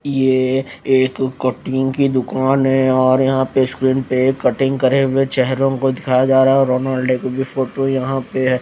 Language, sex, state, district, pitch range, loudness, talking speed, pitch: Hindi, female, Punjab, Fazilka, 130-135 Hz, -16 LUFS, 195 wpm, 130 Hz